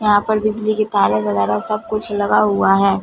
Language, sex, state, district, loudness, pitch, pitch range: Hindi, female, Punjab, Fazilka, -17 LUFS, 205 Hz, 195-215 Hz